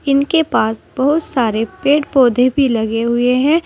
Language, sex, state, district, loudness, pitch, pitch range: Hindi, female, Uttar Pradesh, Saharanpur, -15 LUFS, 260 Hz, 235-285 Hz